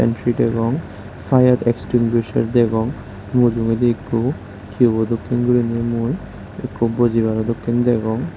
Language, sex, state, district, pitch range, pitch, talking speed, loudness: Chakma, male, Tripura, West Tripura, 115-120 Hz, 115 Hz, 100 wpm, -18 LUFS